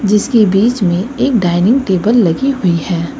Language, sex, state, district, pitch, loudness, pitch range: Hindi, female, Uttar Pradesh, Lucknow, 205 Hz, -12 LUFS, 180-240 Hz